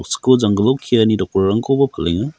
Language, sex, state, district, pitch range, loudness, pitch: Garo, male, Meghalaya, West Garo Hills, 100-130 Hz, -16 LUFS, 115 Hz